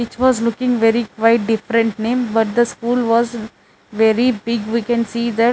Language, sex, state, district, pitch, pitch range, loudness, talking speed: English, female, Chandigarh, Chandigarh, 230 Hz, 225-240 Hz, -17 LUFS, 185 wpm